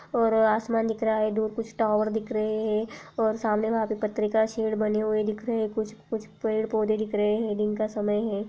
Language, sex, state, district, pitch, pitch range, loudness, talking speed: Hindi, female, Uttar Pradesh, Jalaun, 215 Hz, 215-220 Hz, -27 LUFS, 210 wpm